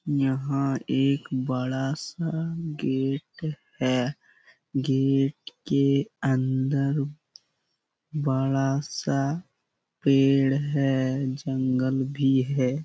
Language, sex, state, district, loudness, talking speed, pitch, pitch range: Hindi, male, Chhattisgarh, Bastar, -26 LUFS, 65 wpm, 135 Hz, 130-145 Hz